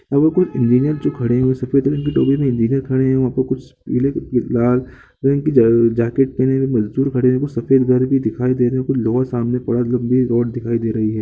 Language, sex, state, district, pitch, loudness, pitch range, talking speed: Hindi, male, Bihar, Gopalganj, 125 Hz, -17 LUFS, 120-135 Hz, 230 wpm